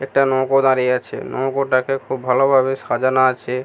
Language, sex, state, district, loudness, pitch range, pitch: Bengali, male, West Bengal, Paschim Medinipur, -18 LUFS, 130-135 Hz, 130 Hz